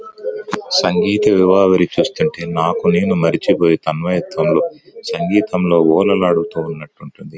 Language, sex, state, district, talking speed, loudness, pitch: Telugu, male, Andhra Pradesh, Anantapur, 75 wpm, -15 LUFS, 95 Hz